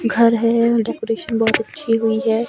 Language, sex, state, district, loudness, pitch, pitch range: Hindi, female, Himachal Pradesh, Shimla, -18 LUFS, 230 Hz, 225-230 Hz